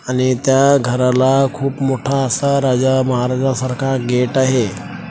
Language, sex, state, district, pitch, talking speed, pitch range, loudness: Marathi, male, Maharashtra, Washim, 130 Hz, 130 wpm, 125-135 Hz, -16 LUFS